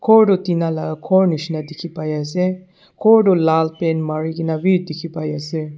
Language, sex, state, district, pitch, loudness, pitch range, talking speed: Nagamese, male, Nagaland, Dimapur, 165 Hz, -18 LUFS, 155-185 Hz, 185 wpm